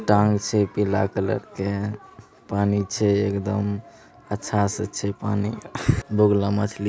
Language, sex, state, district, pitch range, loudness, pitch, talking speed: Angika, male, Bihar, Begusarai, 100-105 Hz, -24 LUFS, 100 Hz, 130 wpm